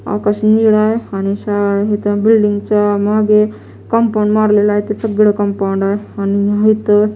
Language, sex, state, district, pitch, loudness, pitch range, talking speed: Marathi, female, Maharashtra, Washim, 210 Hz, -14 LUFS, 205-215 Hz, 165 wpm